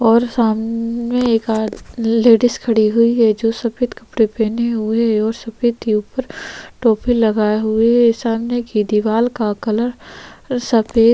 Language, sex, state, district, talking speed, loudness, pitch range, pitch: Hindi, female, Maharashtra, Chandrapur, 155 wpm, -16 LUFS, 220-235 Hz, 230 Hz